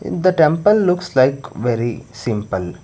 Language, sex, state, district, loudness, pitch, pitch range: English, male, Karnataka, Bangalore, -17 LUFS, 130 Hz, 115-175 Hz